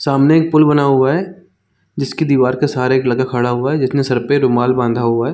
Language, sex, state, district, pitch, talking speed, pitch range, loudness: Hindi, male, Chhattisgarh, Raigarh, 135 Hz, 245 wpm, 125-145 Hz, -14 LUFS